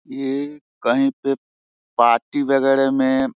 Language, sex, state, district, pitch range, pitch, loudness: Hindi, male, Bihar, Muzaffarpur, 120-140 Hz, 135 Hz, -19 LUFS